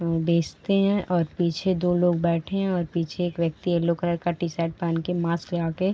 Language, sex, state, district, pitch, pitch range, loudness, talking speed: Hindi, female, Bihar, Gopalganj, 170 Hz, 170-180 Hz, -25 LUFS, 230 wpm